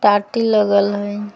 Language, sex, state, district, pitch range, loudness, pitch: Magahi, female, Jharkhand, Palamu, 205-210 Hz, -17 LUFS, 205 Hz